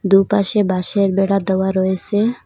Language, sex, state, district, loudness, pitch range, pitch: Bengali, female, Assam, Hailakandi, -17 LUFS, 190-205 Hz, 195 Hz